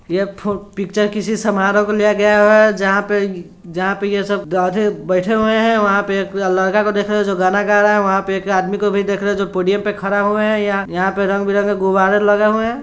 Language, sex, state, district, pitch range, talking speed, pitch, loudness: Hindi, male, Bihar, Sitamarhi, 195-210 Hz, 250 wpm, 200 Hz, -16 LUFS